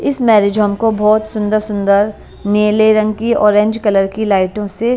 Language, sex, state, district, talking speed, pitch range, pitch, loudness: Hindi, female, Punjab, Kapurthala, 180 wpm, 205-220 Hz, 210 Hz, -13 LUFS